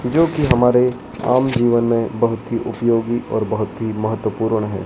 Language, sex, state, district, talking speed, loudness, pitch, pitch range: Hindi, male, Madhya Pradesh, Dhar, 175 wpm, -18 LUFS, 115 Hz, 110-125 Hz